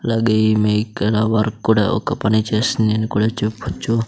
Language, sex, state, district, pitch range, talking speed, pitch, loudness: Telugu, male, Andhra Pradesh, Sri Satya Sai, 110-115 Hz, 145 wpm, 110 Hz, -18 LUFS